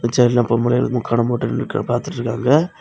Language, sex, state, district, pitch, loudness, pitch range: Tamil, male, Tamil Nadu, Kanyakumari, 120 Hz, -18 LUFS, 120-125 Hz